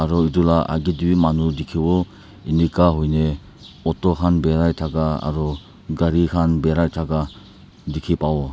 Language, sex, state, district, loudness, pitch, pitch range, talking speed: Nagamese, male, Nagaland, Dimapur, -20 LUFS, 80 Hz, 80-85 Hz, 150 wpm